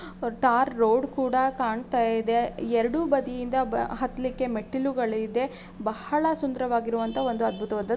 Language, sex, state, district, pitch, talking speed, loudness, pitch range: Kannada, female, Karnataka, Raichur, 245 Hz, 105 wpm, -26 LUFS, 230-260 Hz